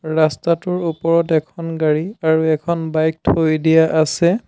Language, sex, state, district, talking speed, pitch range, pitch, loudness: Assamese, male, Assam, Sonitpur, 135 wpm, 155-170 Hz, 160 Hz, -17 LUFS